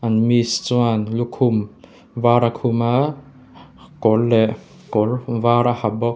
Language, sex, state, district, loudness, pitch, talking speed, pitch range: Mizo, male, Mizoram, Aizawl, -18 LUFS, 120 Hz, 135 wpm, 110-120 Hz